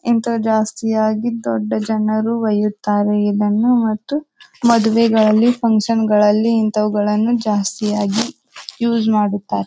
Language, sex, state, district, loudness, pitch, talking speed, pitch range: Kannada, female, Karnataka, Bijapur, -16 LUFS, 220 Hz, 85 wpm, 210-230 Hz